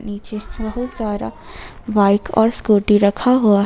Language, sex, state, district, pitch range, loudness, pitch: Hindi, female, Jharkhand, Ranchi, 205-225 Hz, -17 LUFS, 215 Hz